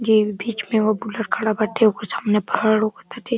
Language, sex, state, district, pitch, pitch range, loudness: Bhojpuri, male, Uttar Pradesh, Deoria, 220 Hz, 215-225 Hz, -20 LUFS